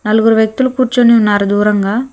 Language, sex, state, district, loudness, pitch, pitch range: Telugu, female, Telangana, Hyderabad, -11 LUFS, 220 Hz, 210-245 Hz